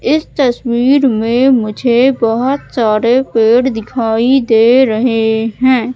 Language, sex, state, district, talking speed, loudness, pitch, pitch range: Hindi, female, Madhya Pradesh, Katni, 110 wpm, -12 LUFS, 240 Hz, 225-260 Hz